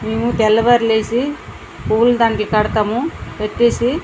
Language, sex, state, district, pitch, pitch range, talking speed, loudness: Telugu, female, Andhra Pradesh, Srikakulam, 230 Hz, 215-240 Hz, 120 wpm, -16 LUFS